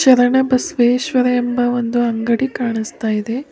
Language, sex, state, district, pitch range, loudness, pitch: Kannada, female, Karnataka, Bidar, 235-255 Hz, -17 LUFS, 245 Hz